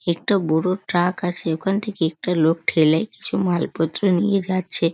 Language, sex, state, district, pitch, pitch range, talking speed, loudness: Bengali, female, West Bengal, North 24 Parganas, 175 Hz, 165-190 Hz, 180 wpm, -21 LUFS